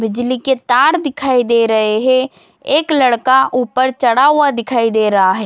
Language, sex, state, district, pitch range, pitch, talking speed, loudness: Hindi, female, Chhattisgarh, Bilaspur, 230-265 Hz, 255 Hz, 175 wpm, -13 LUFS